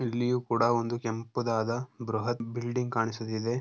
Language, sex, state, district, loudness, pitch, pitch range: Kannada, male, Karnataka, Dharwad, -30 LUFS, 115 Hz, 115-120 Hz